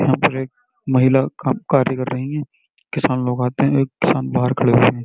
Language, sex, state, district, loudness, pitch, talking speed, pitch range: Hindi, male, Uttar Pradesh, Muzaffarnagar, -18 LUFS, 130 Hz, 225 wpm, 125-135 Hz